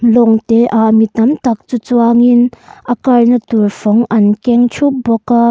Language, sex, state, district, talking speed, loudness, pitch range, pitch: Mizo, female, Mizoram, Aizawl, 195 wpm, -11 LUFS, 225-245 Hz, 235 Hz